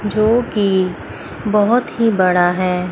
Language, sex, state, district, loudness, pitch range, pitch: Hindi, female, Chandigarh, Chandigarh, -16 LUFS, 185-225 Hz, 205 Hz